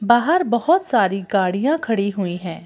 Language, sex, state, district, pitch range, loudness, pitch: Hindi, female, Madhya Pradesh, Bhopal, 195-290 Hz, -19 LUFS, 225 Hz